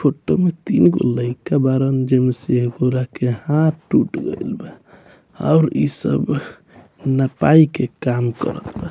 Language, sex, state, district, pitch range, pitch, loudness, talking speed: Bhojpuri, male, Bihar, Muzaffarpur, 125-155 Hz, 130 Hz, -18 LUFS, 170 wpm